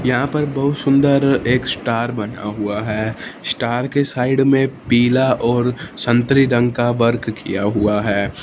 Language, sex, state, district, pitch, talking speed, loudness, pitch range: Hindi, male, Punjab, Fazilka, 120 Hz, 155 wpm, -17 LUFS, 110-135 Hz